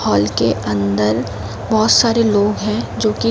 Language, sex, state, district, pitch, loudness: Hindi, female, Uttar Pradesh, Jalaun, 110 Hz, -16 LUFS